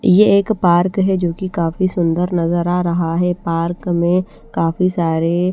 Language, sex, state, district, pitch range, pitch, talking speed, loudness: Hindi, female, Odisha, Nuapada, 170-185 Hz, 175 Hz, 175 wpm, -17 LUFS